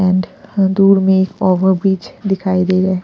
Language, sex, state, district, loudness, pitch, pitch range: Hindi, female, Punjab, Pathankot, -14 LUFS, 190 Hz, 185-195 Hz